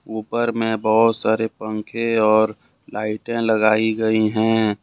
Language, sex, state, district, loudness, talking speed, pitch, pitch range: Hindi, male, Jharkhand, Ranchi, -19 LUFS, 125 wpm, 110 Hz, 110-115 Hz